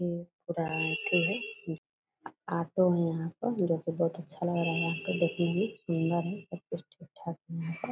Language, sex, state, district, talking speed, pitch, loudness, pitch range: Hindi, female, Bihar, Purnia, 210 wpm, 170 Hz, -32 LUFS, 165-175 Hz